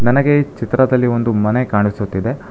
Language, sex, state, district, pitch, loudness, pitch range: Kannada, male, Karnataka, Bangalore, 120 Hz, -16 LUFS, 105-130 Hz